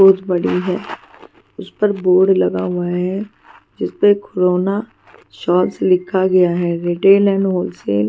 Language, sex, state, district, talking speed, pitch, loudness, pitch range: Hindi, female, Punjab, Pathankot, 150 wpm, 185 Hz, -16 LUFS, 180-195 Hz